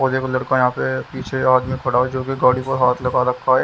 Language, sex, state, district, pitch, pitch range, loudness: Hindi, male, Haryana, Jhajjar, 130 Hz, 125-130 Hz, -19 LUFS